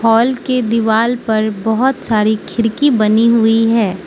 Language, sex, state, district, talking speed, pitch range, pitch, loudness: Hindi, female, Manipur, Imphal West, 150 wpm, 220-240 Hz, 225 Hz, -14 LUFS